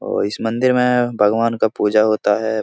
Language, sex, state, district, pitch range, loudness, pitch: Hindi, male, Bihar, Supaul, 110-120 Hz, -17 LUFS, 110 Hz